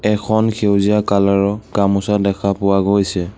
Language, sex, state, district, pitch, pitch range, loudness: Assamese, male, Assam, Sonitpur, 100 Hz, 100-105 Hz, -16 LUFS